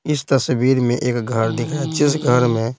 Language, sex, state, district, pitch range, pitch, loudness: Hindi, male, Bihar, Patna, 120-145 Hz, 125 Hz, -18 LUFS